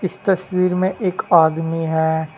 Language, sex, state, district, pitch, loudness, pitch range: Hindi, male, Uttar Pradesh, Saharanpur, 180 Hz, -18 LUFS, 160-185 Hz